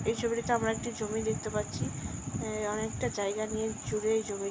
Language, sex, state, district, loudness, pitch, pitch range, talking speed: Bengali, female, West Bengal, Dakshin Dinajpur, -33 LUFS, 220 Hz, 215-225 Hz, 200 wpm